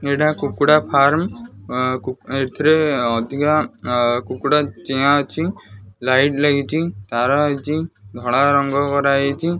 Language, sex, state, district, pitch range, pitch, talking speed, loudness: Odia, male, Odisha, Khordha, 125-150 Hz, 140 Hz, 115 wpm, -18 LUFS